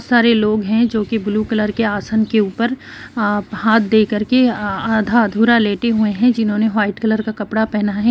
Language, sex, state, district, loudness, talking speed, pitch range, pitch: Hindi, female, Uttarakhand, Uttarkashi, -16 LUFS, 200 wpm, 210-230 Hz, 220 Hz